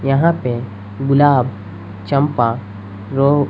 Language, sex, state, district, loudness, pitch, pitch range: Hindi, female, Bihar, West Champaran, -17 LUFS, 125 Hz, 100-140 Hz